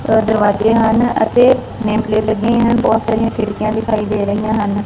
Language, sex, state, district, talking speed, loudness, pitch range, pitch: Punjabi, female, Punjab, Fazilka, 185 wpm, -15 LUFS, 215-225 Hz, 220 Hz